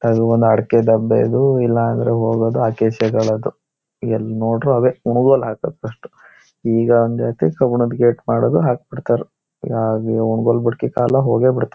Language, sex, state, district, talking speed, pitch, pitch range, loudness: Kannada, male, Karnataka, Shimoga, 145 wpm, 115 Hz, 110-120 Hz, -17 LUFS